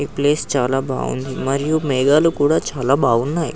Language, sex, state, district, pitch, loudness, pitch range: Telugu, male, Telangana, Nalgonda, 140 Hz, -18 LUFS, 130-150 Hz